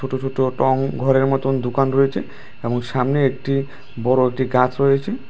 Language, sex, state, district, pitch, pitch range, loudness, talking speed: Bengali, male, Tripura, West Tripura, 135 Hz, 130-135 Hz, -19 LUFS, 160 wpm